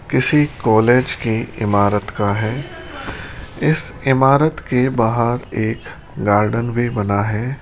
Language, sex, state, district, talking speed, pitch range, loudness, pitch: Hindi, male, Rajasthan, Jaipur, 120 wpm, 110-130 Hz, -17 LUFS, 115 Hz